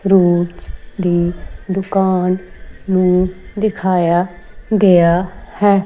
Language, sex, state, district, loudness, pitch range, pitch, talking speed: Punjabi, female, Punjab, Kapurthala, -16 LUFS, 175-195 Hz, 185 Hz, 70 wpm